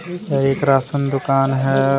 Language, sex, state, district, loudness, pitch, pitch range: Hindi, male, Jharkhand, Deoghar, -18 LUFS, 135 Hz, 135-140 Hz